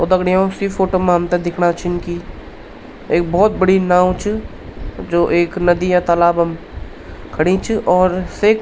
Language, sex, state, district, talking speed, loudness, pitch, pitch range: Garhwali, male, Uttarakhand, Tehri Garhwal, 175 wpm, -16 LUFS, 180 Hz, 175-190 Hz